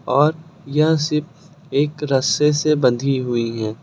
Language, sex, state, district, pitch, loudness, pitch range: Hindi, male, Uttar Pradesh, Lucknow, 150 Hz, -19 LUFS, 130-155 Hz